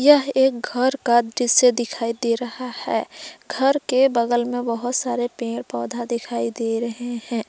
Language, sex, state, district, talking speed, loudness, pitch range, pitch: Hindi, female, Jharkhand, Palamu, 170 wpm, -21 LUFS, 235-255 Hz, 240 Hz